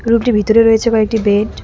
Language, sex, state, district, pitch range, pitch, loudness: Bengali, female, West Bengal, Cooch Behar, 215-230 Hz, 225 Hz, -12 LUFS